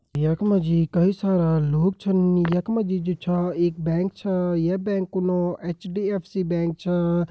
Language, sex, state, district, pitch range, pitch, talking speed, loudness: Hindi, male, Uttarakhand, Uttarkashi, 170-190 Hz, 180 Hz, 180 wpm, -23 LUFS